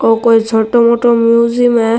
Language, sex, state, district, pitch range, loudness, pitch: Marwari, male, Rajasthan, Nagaur, 225-235 Hz, -11 LUFS, 230 Hz